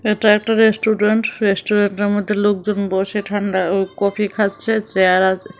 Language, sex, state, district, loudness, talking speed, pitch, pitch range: Bengali, female, Tripura, West Tripura, -17 LUFS, 140 wpm, 205 Hz, 195-210 Hz